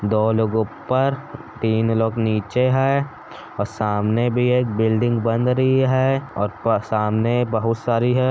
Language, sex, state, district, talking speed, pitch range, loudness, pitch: Hindi, male, Bihar, Gaya, 145 wpm, 110-130 Hz, -20 LUFS, 115 Hz